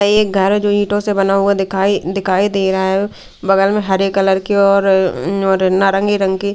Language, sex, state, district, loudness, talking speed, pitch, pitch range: Hindi, female, Delhi, New Delhi, -14 LUFS, 190 wpm, 195 Hz, 190-200 Hz